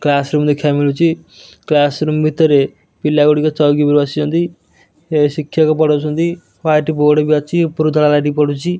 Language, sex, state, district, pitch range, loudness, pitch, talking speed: Odia, male, Odisha, Nuapada, 145-155 Hz, -14 LUFS, 150 Hz, 150 wpm